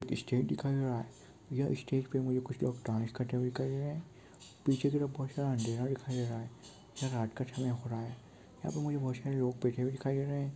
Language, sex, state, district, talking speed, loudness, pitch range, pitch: Hindi, male, Goa, North and South Goa, 265 wpm, -36 LUFS, 125-135 Hz, 130 Hz